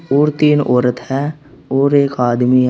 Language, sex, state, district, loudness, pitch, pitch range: Hindi, male, Uttar Pradesh, Saharanpur, -15 LUFS, 135 Hz, 125-145 Hz